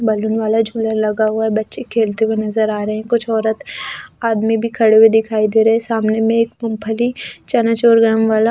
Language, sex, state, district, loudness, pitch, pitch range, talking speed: Hindi, female, Delhi, New Delhi, -16 LUFS, 220 Hz, 220-230 Hz, 210 wpm